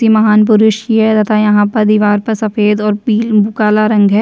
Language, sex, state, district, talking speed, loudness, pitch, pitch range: Hindi, female, Chhattisgarh, Bastar, 200 wpm, -11 LUFS, 215 Hz, 210-220 Hz